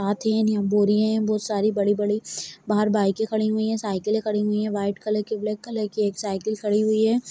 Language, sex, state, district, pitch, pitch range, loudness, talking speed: Hindi, female, Chhattisgarh, Kabirdham, 210 Hz, 205-215 Hz, -23 LUFS, 230 wpm